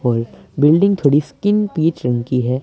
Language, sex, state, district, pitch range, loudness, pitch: Hindi, male, Punjab, Pathankot, 125-165 Hz, -16 LUFS, 140 Hz